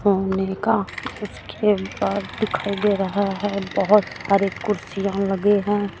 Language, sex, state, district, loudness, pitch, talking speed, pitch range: Hindi, female, Jharkhand, Deoghar, -22 LUFS, 200 Hz, 130 wpm, 195-205 Hz